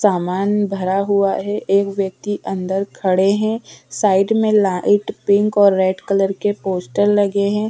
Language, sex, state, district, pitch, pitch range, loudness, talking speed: Hindi, female, Bihar, Patna, 200 Hz, 190-205 Hz, -17 LUFS, 165 wpm